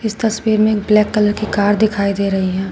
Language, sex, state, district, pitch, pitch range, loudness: Hindi, female, Uttar Pradesh, Shamli, 210 Hz, 200-215 Hz, -16 LUFS